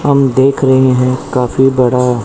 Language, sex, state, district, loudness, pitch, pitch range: Hindi, male, Punjab, Pathankot, -11 LUFS, 130 Hz, 125-135 Hz